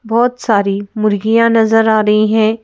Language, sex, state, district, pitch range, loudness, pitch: Hindi, female, Madhya Pradesh, Bhopal, 210-225 Hz, -13 LUFS, 220 Hz